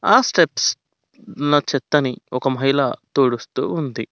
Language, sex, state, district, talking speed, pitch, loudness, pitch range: Telugu, male, Telangana, Mahabubabad, 115 wpm, 135 Hz, -19 LUFS, 125-145 Hz